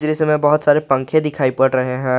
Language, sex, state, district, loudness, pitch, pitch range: Hindi, male, Jharkhand, Garhwa, -16 LUFS, 145 Hz, 130-150 Hz